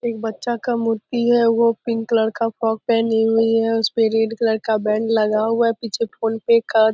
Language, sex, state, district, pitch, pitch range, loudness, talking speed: Hindi, female, Bihar, Begusarai, 225 Hz, 220-230 Hz, -19 LUFS, 235 wpm